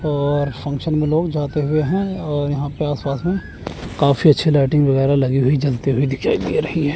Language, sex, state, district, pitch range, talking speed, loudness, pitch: Hindi, male, Chandigarh, Chandigarh, 140-155 Hz, 215 wpm, -18 LUFS, 145 Hz